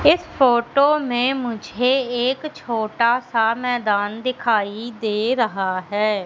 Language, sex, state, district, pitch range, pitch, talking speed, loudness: Hindi, female, Madhya Pradesh, Katni, 215-255 Hz, 240 Hz, 115 wpm, -20 LUFS